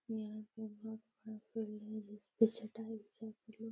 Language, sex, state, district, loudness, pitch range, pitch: Hindi, female, Bihar, Gaya, -43 LUFS, 215-225 Hz, 220 Hz